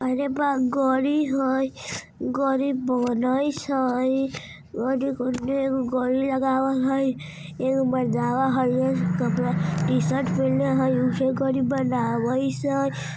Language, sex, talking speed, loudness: Bhojpuri, male, 105 wpm, -24 LUFS